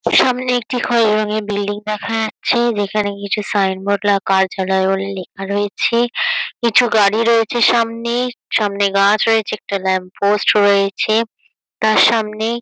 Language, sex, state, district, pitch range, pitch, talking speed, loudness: Bengali, female, West Bengal, Malda, 200-235 Hz, 215 Hz, 130 wpm, -16 LUFS